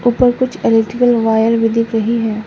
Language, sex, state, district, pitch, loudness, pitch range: Hindi, female, Arunachal Pradesh, Lower Dibang Valley, 230 Hz, -14 LUFS, 225-240 Hz